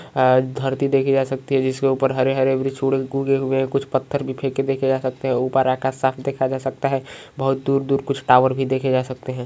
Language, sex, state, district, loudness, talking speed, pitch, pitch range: Magahi, male, Bihar, Gaya, -20 LUFS, 235 wpm, 135 Hz, 130-135 Hz